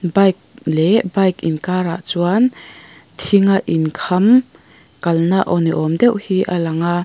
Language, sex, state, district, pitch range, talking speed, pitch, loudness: Mizo, female, Mizoram, Aizawl, 165-195 Hz, 135 wpm, 180 Hz, -16 LUFS